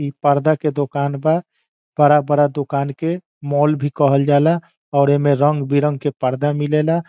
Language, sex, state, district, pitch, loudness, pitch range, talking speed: Bhojpuri, male, Bihar, Saran, 145 Hz, -17 LUFS, 140-150 Hz, 170 wpm